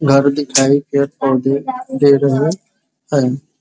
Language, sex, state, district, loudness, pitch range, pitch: Hindi, male, Bihar, East Champaran, -15 LUFS, 140-150 Hz, 140 Hz